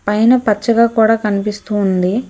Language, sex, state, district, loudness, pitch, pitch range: Telugu, female, Telangana, Hyderabad, -14 LUFS, 210 Hz, 205-230 Hz